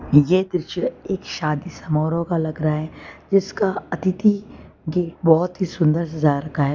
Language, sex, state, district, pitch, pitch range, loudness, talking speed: Hindi, female, Gujarat, Valsad, 170 Hz, 155-185 Hz, -21 LUFS, 160 wpm